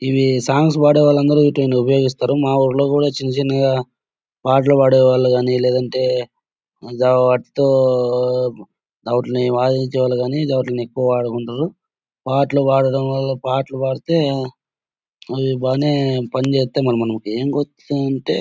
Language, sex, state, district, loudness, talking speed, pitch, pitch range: Telugu, male, Andhra Pradesh, Anantapur, -17 LUFS, 90 wpm, 130 Hz, 125-140 Hz